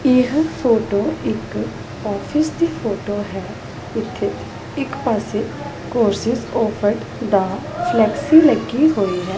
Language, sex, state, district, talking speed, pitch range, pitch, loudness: Punjabi, female, Punjab, Pathankot, 110 wpm, 205-295 Hz, 230 Hz, -19 LUFS